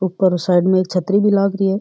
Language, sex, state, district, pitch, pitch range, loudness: Rajasthani, female, Rajasthan, Churu, 190 Hz, 185-195 Hz, -16 LUFS